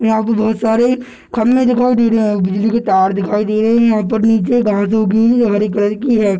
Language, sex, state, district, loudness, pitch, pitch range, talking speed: Hindi, male, Bihar, Darbhanga, -14 LUFS, 220 Hz, 210-235 Hz, 245 wpm